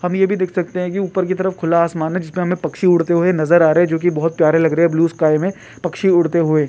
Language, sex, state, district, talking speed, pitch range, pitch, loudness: Hindi, male, Rajasthan, Churu, 315 wpm, 165-180 Hz, 170 Hz, -16 LUFS